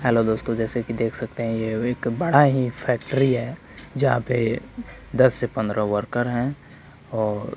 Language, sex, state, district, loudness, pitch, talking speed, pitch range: Hindi, male, Bihar, Kaimur, -23 LUFS, 120 Hz, 165 wpm, 115-130 Hz